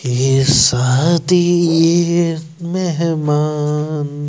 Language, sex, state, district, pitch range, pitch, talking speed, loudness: Hindi, male, Madhya Pradesh, Bhopal, 145-170 Hz, 155 Hz, 55 wpm, -15 LUFS